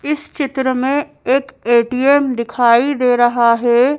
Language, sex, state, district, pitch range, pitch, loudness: Hindi, female, Madhya Pradesh, Bhopal, 240-275 Hz, 260 Hz, -15 LUFS